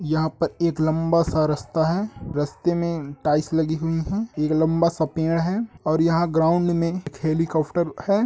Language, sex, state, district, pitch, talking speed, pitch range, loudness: Hindi, male, Andhra Pradesh, Guntur, 165 Hz, 180 wpm, 155-170 Hz, -23 LUFS